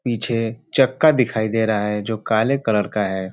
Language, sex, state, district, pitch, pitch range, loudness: Hindi, male, Uttar Pradesh, Ghazipur, 110 Hz, 105-125 Hz, -19 LUFS